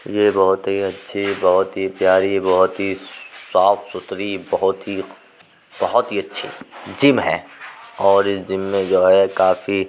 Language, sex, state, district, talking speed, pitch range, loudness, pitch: Hindi, male, Uttar Pradesh, Jyotiba Phule Nagar, 160 wpm, 95-100 Hz, -18 LUFS, 95 Hz